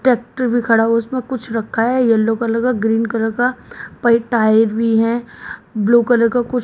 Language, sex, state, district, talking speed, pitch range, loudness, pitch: Hindi, female, Haryana, Jhajjar, 210 wpm, 225-245 Hz, -16 LUFS, 230 Hz